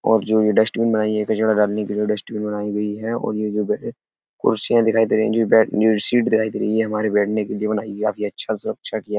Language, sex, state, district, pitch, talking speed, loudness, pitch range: Hindi, male, Uttar Pradesh, Etah, 110 Hz, 285 wpm, -20 LUFS, 105-110 Hz